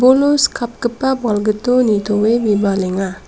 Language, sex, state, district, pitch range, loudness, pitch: Garo, female, Meghalaya, South Garo Hills, 205-250 Hz, -16 LUFS, 230 Hz